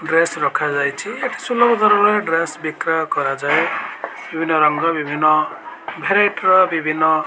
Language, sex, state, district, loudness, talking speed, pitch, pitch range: Odia, male, Odisha, Malkangiri, -17 LUFS, 125 wpm, 160 Hz, 155-195 Hz